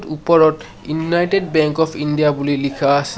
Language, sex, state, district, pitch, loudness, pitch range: Assamese, male, Assam, Sonitpur, 155 Hz, -17 LUFS, 145-160 Hz